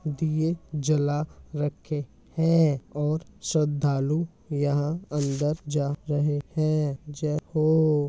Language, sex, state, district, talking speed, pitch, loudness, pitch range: Hindi, male, Uttar Pradesh, Hamirpur, 95 wpm, 150 Hz, -26 LUFS, 145-155 Hz